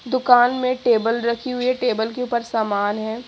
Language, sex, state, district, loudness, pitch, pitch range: Hindi, female, Haryana, Jhajjar, -20 LUFS, 240 Hz, 225-250 Hz